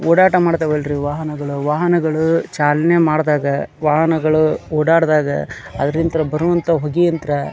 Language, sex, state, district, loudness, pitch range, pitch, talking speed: Kannada, male, Karnataka, Dharwad, -16 LUFS, 145-165 Hz, 155 Hz, 110 wpm